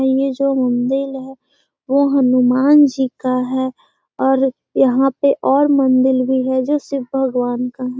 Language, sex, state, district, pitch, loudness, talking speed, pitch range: Hindi, female, Bihar, Gaya, 265 Hz, -16 LUFS, 160 wpm, 255-275 Hz